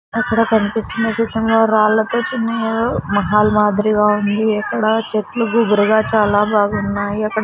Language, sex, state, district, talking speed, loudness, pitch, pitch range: Telugu, female, Andhra Pradesh, Sri Satya Sai, 120 wpm, -16 LUFS, 215 Hz, 210-225 Hz